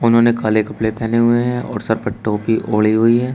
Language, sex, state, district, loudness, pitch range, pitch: Hindi, male, Uttar Pradesh, Shamli, -17 LUFS, 110-120 Hz, 115 Hz